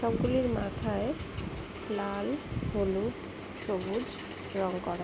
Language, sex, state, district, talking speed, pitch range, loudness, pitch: Bengali, female, West Bengal, Jhargram, 85 wpm, 195-230 Hz, -33 LUFS, 205 Hz